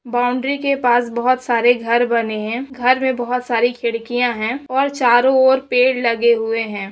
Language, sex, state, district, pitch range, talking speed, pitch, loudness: Hindi, female, Maharashtra, Aurangabad, 235-255 Hz, 180 wpm, 245 Hz, -17 LUFS